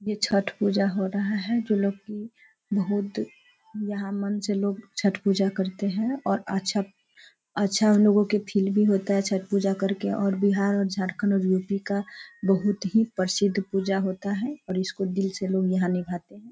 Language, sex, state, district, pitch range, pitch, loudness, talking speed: Hindi, female, Bihar, Sitamarhi, 195-210 Hz, 200 Hz, -25 LUFS, 180 wpm